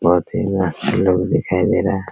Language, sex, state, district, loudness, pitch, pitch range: Hindi, male, Bihar, Araria, -18 LUFS, 95 Hz, 85-100 Hz